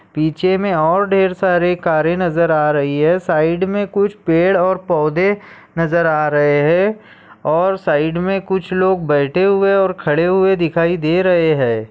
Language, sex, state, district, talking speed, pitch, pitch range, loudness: Hindi, male, Maharashtra, Aurangabad, 170 wpm, 175 Hz, 155-190 Hz, -15 LUFS